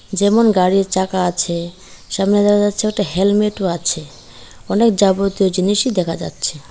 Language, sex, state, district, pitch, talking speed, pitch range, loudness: Bengali, female, Tripura, Dhalai, 195 Hz, 145 wpm, 175-205 Hz, -16 LUFS